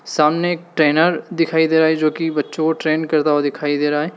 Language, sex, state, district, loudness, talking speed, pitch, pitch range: Hindi, male, Uttar Pradesh, Lalitpur, -17 LUFS, 260 wpm, 160 Hz, 150-165 Hz